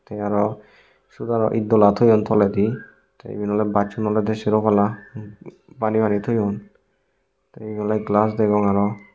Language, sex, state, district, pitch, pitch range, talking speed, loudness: Chakma, male, Tripura, Unakoti, 105 Hz, 105-110 Hz, 150 wpm, -20 LUFS